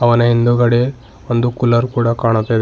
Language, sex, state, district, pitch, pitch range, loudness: Kannada, male, Karnataka, Bidar, 120 Hz, 115-120 Hz, -15 LUFS